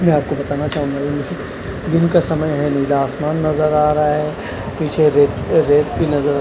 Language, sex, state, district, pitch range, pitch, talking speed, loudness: Hindi, male, Punjab, Kapurthala, 145-155 Hz, 150 Hz, 180 wpm, -17 LUFS